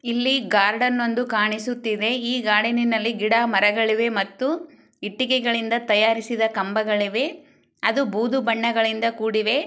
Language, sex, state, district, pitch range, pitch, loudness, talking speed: Kannada, female, Karnataka, Chamarajanagar, 215-245 Hz, 230 Hz, -21 LUFS, 100 wpm